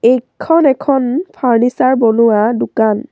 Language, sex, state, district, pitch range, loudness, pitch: Assamese, female, Assam, Sonitpur, 230-275 Hz, -13 LUFS, 250 Hz